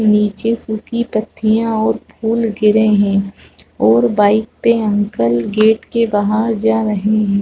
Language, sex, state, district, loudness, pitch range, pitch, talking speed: Hindi, female, Chhattisgarh, Rajnandgaon, -15 LUFS, 205-225 Hz, 215 Hz, 135 wpm